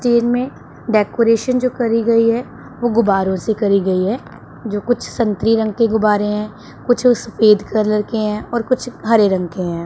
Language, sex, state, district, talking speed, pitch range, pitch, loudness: Hindi, female, Punjab, Pathankot, 195 wpm, 210-235 Hz, 220 Hz, -16 LUFS